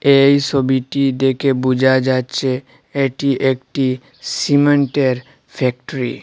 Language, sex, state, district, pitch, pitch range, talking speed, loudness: Bengali, male, Assam, Hailakandi, 135 Hz, 130-140 Hz, 105 wpm, -17 LUFS